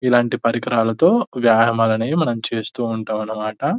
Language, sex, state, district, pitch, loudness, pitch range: Telugu, male, Telangana, Nalgonda, 115 Hz, -19 LUFS, 110-120 Hz